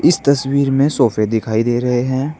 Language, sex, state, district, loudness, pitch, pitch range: Hindi, male, Uttar Pradesh, Saharanpur, -16 LUFS, 130 Hz, 120-140 Hz